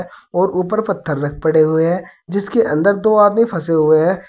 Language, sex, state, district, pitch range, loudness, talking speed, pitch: Hindi, male, Uttar Pradesh, Saharanpur, 160-200 Hz, -16 LUFS, 180 wpm, 180 Hz